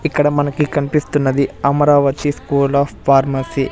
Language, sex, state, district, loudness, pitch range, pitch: Telugu, male, Andhra Pradesh, Sri Satya Sai, -16 LUFS, 135-145 Hz, 140 Hz